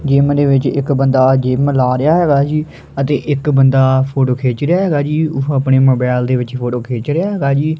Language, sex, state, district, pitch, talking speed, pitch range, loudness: Punjabi, male, Punjab, Kapurthala, 135 Hz, 215 wpm, 130-145 Hz, -14 LUFS